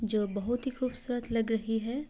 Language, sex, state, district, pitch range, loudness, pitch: Hindi, female, Uttar Pradesh, Varanasi, 220-250 Hz, -32 LUFS, 230 Hz